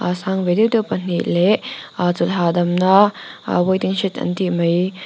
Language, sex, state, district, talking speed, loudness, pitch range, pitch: Mizo, female, Mizoram, Aizawl, 190 wpm, -18 LUFS, 175-195 Hz, 185 Hz